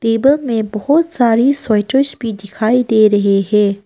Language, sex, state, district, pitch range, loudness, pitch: Hindi, female, Arunachal Pradesh, Papum Pare, 210-260 Hz, -14 LUFS, 225 Hz